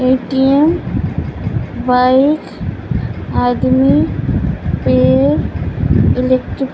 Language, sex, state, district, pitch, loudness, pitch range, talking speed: Hindi, female, Bihar, Purnia, 260 Hz, -14 LUFS, 255-270 Hz, 55 wpm